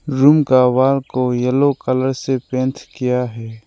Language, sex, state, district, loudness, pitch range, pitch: Hindi, male, Arunachal Pradesh, Lower Dibang Valley, -17 LUFS, 125-135 Hz, 130 Hz